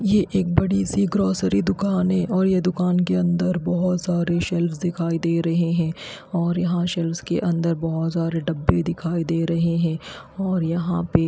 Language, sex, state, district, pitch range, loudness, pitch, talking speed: Hindi, female, Haryana, Rohtak, 165-180 Hz, -22 LUFS, 170 Hz, 180 wpm